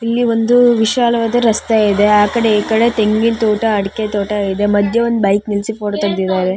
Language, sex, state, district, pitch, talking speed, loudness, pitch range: Kannada, female, Karnataka, Shimoga, 215 Hz, 185 wpm, -14 LUFS, 205-230 Hz